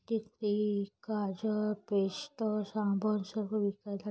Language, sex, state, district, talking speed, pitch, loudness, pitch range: Marathi, female, Maharashtra, Chandrapur, 85 wpm, 210 Hz, -34 LUFS, 200-215 Hz